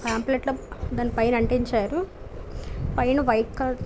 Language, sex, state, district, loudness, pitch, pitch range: Telugu, female, Andhra Pradesh, Visakhapatnam, -25 LUFS, 245 Hz, 230-265 Hz